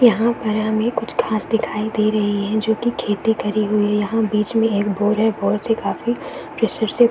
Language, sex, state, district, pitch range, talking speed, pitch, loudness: Hindi, female, Bihar, East Champaran, 210-225 Hz, 230 wpm, 215 Hz, -19 LUFS